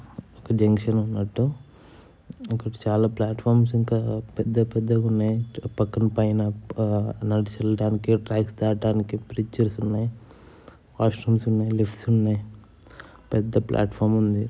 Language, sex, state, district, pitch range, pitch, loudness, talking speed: Telugu, male, Andhra Pradesh, Anantapur, 105-115 Hz, 110 Hz, -24 LUFS, 105 wpm